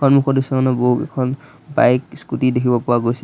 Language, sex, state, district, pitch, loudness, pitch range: Assamese, male, Assam, Sonitpur, 130 Hz, -18 LUFS, 125-140 Hz